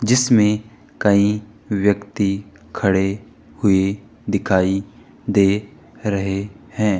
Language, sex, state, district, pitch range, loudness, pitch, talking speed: Hindi, male, Rajasthan, Jaipur, 95-105 Hz, -19 LUFS, 100 Hz, 75 wpm